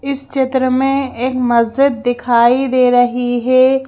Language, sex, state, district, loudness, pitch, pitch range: Hindi, female, Madhya Pradesh, Bhopal, -14 LUFS, 255 Hz, 245-265 Hz